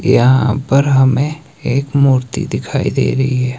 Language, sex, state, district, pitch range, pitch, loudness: Hindi, male, Himachal Pradesh, Shimla, 130-140 Hz, 135 Hz, -14 LUFS